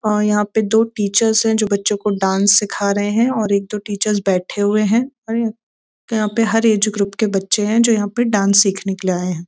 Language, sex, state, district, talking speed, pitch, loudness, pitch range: Hindi, female, Uttar Pradesh, Deoria, 240 wpm, 210 Hz, -16 LUFS, 200-225 Hz